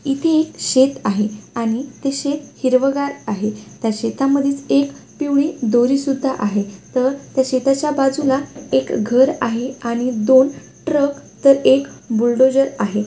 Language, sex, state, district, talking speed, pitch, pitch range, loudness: Marathi, female, Maharashtra, Solapur, 135 wpm, 265 Hz, 235-280 Hz, -18 LUFS